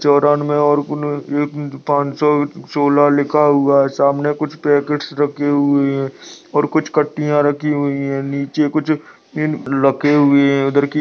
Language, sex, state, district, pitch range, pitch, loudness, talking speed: Hindi, male, Uttar Pradesh, Jyotiba Phule Nagar, 140-150 Hz, 145 Hz, -16 LUFS, 140 wpm